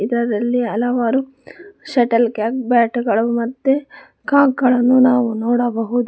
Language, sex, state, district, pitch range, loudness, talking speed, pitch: Kannada, female, Karnataka, Bangalore, 235-255 Hz, -17 LUFS, 90 wpm, 245 Hz